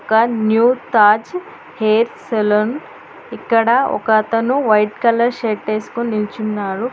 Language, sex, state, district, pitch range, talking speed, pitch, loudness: Telugu, female, Telangana, Hyderabad, 215-240 Hz, 105 wpm, 225 Hz, -16 LUFS